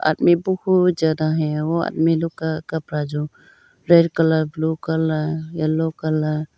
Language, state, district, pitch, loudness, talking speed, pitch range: Hindi, Arunachal Pradesh, Lower Dibang Valley, 160 Hz, -20 LUFS, 165 wpm, 155-165 Hz